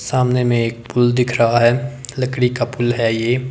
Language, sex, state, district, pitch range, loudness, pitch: Hindi, male, Himachal Pradesh, Shimla, 115-125 Hz, -17 LUFS, 120 Hz